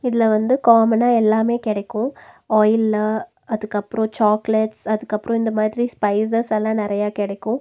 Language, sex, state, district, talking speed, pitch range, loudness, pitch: Tamil, female, Tamil Nadu, Nilgiris, 120 wpm, 215-230 Hz, -19 LUFS, 220 Hz